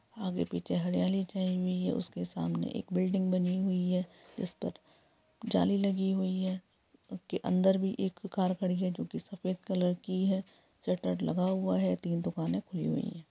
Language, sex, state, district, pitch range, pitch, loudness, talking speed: Hindi, female, Jharkhand, Sahebganj, 175-190 Hz, 185 Hz, -33 LUFS, 180 wpm